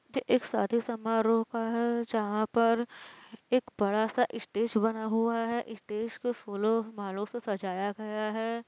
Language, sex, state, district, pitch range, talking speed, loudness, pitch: Hindi, female, Uttar Pradesh, Varanasi, 215-230 Hz, 150 wpm, -31 LUFS, 225 Hz